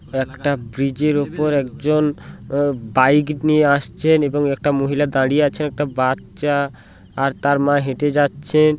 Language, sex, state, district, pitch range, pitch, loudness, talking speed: Bengali, male, West Bengal, Paschim Medinipur, 135-150 Hz, 145 Hz, -18 LUFS, 135 wpm